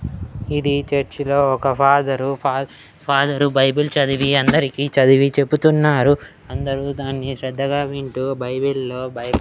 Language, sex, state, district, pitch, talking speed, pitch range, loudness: Telugu, male, Andhra Pradesh, Annamaya, 135 Hz, 110 wpm, 130-140 Hz, -18 LUFS